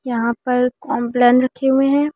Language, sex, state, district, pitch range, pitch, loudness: Hindi, female, Delhi, New Delhi, 245-270 Hz, 250 Hz, -17 LUFS